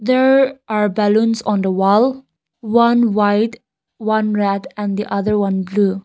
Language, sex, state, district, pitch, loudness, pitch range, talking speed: English, female, Nagaland, Kohima, 210 Hz, -16 LUFS, 205-235 Hz, 150 wpm